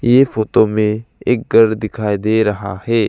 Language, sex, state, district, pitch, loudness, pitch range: Hindi, male, Arunachal Pradesh, Lower Dibang Valley, 110 Hz, -15 LUFS, 105-115 Hz